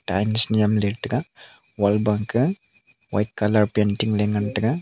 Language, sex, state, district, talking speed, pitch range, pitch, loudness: Wancho, male, Arunachal Pradesh, Longding, 135 wpm, 105-115 Hz, 105 Hz, -21 LUFS